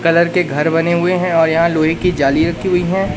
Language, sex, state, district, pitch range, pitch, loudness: Hindi, male, Madhya Pradesh, Katni, 160-180 Hz, 170 Hz, -14 LUFS